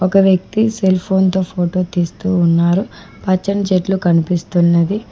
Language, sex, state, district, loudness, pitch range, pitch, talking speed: Telugu, female, Telangana, Mahabubabad, -15 LUFS, 175-195 Hz, 185 Hz, 130 wpm